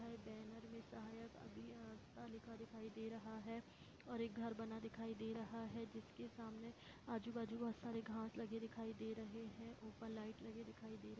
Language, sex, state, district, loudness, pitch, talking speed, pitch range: Hindi, female, Jharkhand, Sahebganj, -52 LUFS, 225 Hz, 195 wpm, 220-230 Hz